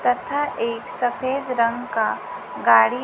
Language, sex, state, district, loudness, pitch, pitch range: Hindi, female, Chhattisgarh, Raipur, -22 LUFS, 245 Hz, 230-260 Hz